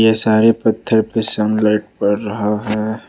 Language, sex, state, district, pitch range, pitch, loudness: Hindi, male, Jharkhand, Ranchi, 105-110 Hz, 110 Hz, -15 LUFS